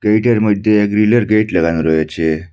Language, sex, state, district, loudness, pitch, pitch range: Bengali, male, Assam, Hailakandi, -14 LUFS, 105 Hz, 80-110 Hz